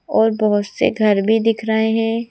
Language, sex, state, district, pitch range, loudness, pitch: Hindi, female, Madhya Pradesh, Bhopal, 215-225 Hz, -17 LUFS, 220 Hz